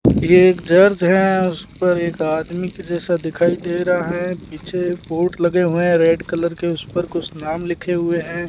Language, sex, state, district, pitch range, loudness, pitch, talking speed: Hindi, male, Rajasthan, Bikaner, 170-180 Hz, -18 LUFS, 175 Hz, 205 wpm